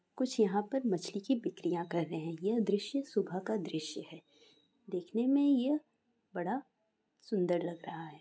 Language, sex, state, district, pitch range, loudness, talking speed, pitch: Hindi, female, Bihar, Saran, 175-255 Hz, -35 LUFS, 170 wpm, 205 Hz